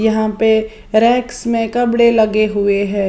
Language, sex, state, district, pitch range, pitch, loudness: Hindi, female, Maharashtra, Washim, 215-235 Hz, 220 Hz, -15 LUFS